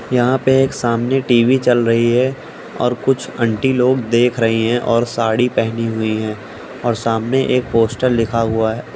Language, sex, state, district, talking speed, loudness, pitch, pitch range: Hindi, male, Uttar Pradesh, Budaun, 180 wpm, -16 LUFS, 120 Hz, 115-130 Hz